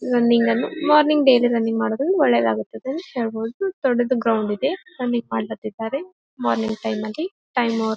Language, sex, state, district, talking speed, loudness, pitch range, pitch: Kannada, female, Karnataka, Gulbarga, 145 wpm, -21 LUFS, 220-275 Hz, 235 Hz